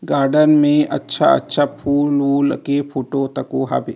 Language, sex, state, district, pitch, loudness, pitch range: Chhattisgarhi, male, Chhattisgarh, Rajnandgaon, 140 Hz, -17 LUFS, 135-145 Hz